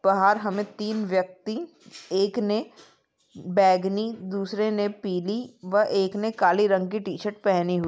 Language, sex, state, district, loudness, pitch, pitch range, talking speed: Hindi, female, Maharashtra, Aurangabad, -25 LUFS, 205 Hz, 190-215 Hz, 150 wpm